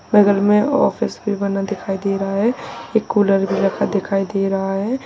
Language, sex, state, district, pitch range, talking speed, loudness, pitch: Hindi, male, Uttar Pradesh, Lalitpur, 195-205 Hz, 200 wpm, -18 LUFS, 200 Hz